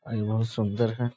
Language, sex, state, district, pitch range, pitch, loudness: Hindi, male, Bihar, Sitamarhi, 110-120 Hz, 115 Hz, -28 LUFS